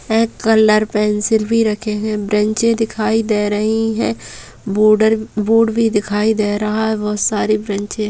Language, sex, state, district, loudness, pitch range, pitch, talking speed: Hindi, female, Bihar, Purnia, -16 LUFS, 210-220 Hz, 215 Hz, 170 wpm